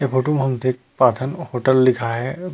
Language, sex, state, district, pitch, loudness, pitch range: Chhattisgarhi, male, Chhattisgarh, Rajnandgaon, 130 Hz, -19 LUFS, 125-135 Hz